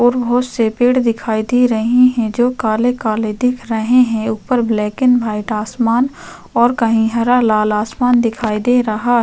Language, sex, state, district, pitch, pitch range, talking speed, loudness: Hindi, female, Uttar Pradesh, Varanasi, 235 Hz, 220-245 Hz, 195 wpm, -15 LUFS